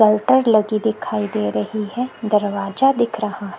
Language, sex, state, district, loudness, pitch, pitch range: Hindi, female, Chhattisgarh, Korba, -19 LUFS, 215 Hz, 200-225 Hz